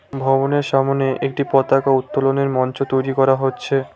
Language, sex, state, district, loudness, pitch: Bengali, male, West Bengal, Cooch Behar, -18 LUFS, 135 Hz